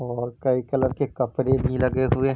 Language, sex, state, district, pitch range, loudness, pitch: Hindi, male, Bihar, East Champaran, 125-130 Hz, -24 LUFS, 130 Hz